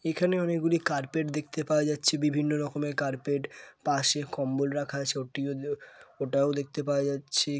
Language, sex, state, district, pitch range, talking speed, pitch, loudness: Bengali, female, West Bengal, Purulia, 140-150 Hz, 140 wpm, 145 Hz, -29 LUFS